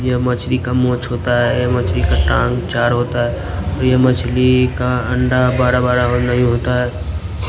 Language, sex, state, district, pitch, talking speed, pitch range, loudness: Hindi, male, Odisha, Nuapada, 125 Hz, 175 wpm, 120-125 Hz, -16 LUFS